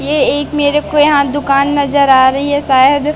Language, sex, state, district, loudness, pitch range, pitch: Hindi, female, Madhya Pradesh, Katni, -11 LUFS, 275-290 Hz, 285 Hz